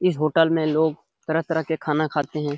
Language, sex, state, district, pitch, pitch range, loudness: Hindi, male, Bihar, Jamui, 160 Hz, 155-160 Hz, -22 LUFS